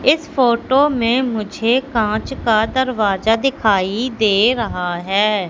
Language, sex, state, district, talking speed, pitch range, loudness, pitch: Hindi, female, Madhya Pradesh, Katni, 120 wpm, 210-255 Hz, -17 LUFS, 230 Hz